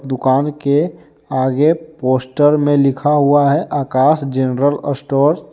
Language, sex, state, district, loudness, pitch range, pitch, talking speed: Hindi, male, Jharkhand, Deoghar, -15 LUFS, 130-150 Hz, 140 Hz, 130 wpm